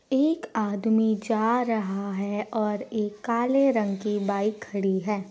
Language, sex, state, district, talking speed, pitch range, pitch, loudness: Hindi, female, Bihar, Supaul, 145 wpm, 205-230 Hz, 215 Hz, -26 LUFS